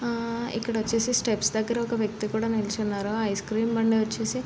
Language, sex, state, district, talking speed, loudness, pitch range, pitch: Telugu, female, Andhra Pradesh, Srikakulam, 200 wpm, -26 LUFS, 215-230 Hz, 225 Hz